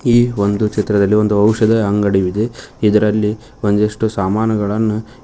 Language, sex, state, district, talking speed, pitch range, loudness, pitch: Kannada, male, Karnataka, Koppal, 115 wpm, 105-110 Hz, -15 LUFS, 105 Hz